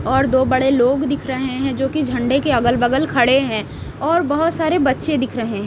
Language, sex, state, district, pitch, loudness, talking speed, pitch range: Hindi, female, Haryana, Rohtak, 265 Hz, -17 LUFS, 230 wpm, 255-285 Hz